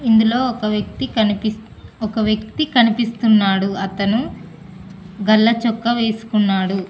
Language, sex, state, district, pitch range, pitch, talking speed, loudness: Telugu, female, Telangana, Mahabubabad, 195-230 Hz, 215 Hz, 95 wpm, -18 LUFS